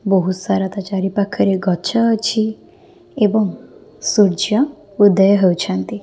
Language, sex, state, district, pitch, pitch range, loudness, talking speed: Odia, female, Odisha, Khordha, 200 Hz, 190-220 Hz, -17 LUFS, 100 wpm